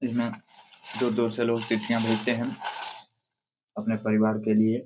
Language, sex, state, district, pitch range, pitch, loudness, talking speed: Hindi, male, Jharkhand, Jamtara, 110-120 Hz, 115 Hz, -27 LUFS, 135 wpm